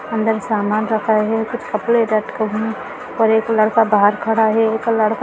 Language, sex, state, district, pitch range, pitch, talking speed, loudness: Hindi, female, Chhattisgarh, Sarguja, 215-225 Hz, 220 Hz, 185 wpm, -17 LUFS